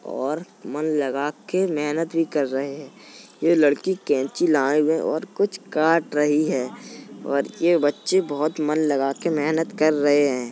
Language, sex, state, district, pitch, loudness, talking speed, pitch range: Hindi, male, Uttar Pradesh, Jalaun, 150 Hz, -22 LUFS, 170 wpm, 145-165 Hz